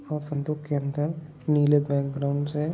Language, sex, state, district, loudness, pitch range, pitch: Hindi, male, Andhra Pradesh, Anantapur, -26 LUFS, 140-150 Hz, 145 Hz